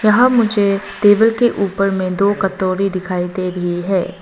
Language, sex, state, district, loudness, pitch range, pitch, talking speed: Hindi, female, Arunachal Pradesh, Longding, -16 LUFS, 185-205 Hz, 195 Hz, 170 wpm